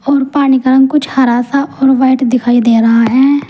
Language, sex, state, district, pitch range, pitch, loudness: Hindi, female, Uttar Pradesh, Saharanpur, 240-275 Hz, 265 Hz, -10 LUFS